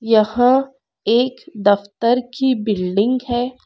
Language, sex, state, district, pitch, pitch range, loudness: Hindi, female, Andhra Pradesh, Anantapur, 240 Hz, 215-255 Hz, -18 LUFS